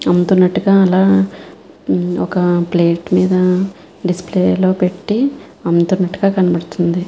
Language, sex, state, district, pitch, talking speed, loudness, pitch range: Telugu, female, Andhra Pradesh, Visakhapatnam, 180 Hz, 75 wpm, -15 LUFS, 170-185 Hz